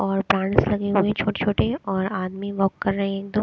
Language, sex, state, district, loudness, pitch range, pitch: Hindi, female, Haryana, Charkhi Dadri, -23 LUFS, 195-200 Hz, 195 Hz